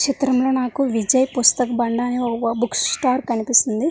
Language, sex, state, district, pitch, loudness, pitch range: Telugu, female, Andhra Pradesh, Visakhapatnam, 250 Hz, -19 LUFS, 235-265 Hz